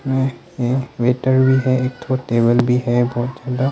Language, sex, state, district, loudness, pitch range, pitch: Hindi, male, Arunachal Pradesh, Longding, -18 LUFS, 120-130 Hz, 130 Hz